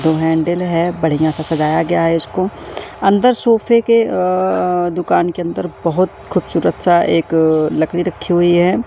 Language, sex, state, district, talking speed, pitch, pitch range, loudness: Hindi, male, Madhya Pradesh, Katni, 155 wpm, 175 Hz, 160-185 Hz, -15 LUFS